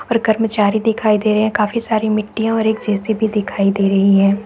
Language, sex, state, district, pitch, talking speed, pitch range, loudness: Hindi, female, Chhattisgarh, Raigarh, 215 Hz, 215 wpm, 205-220 Hz, -16 LUFS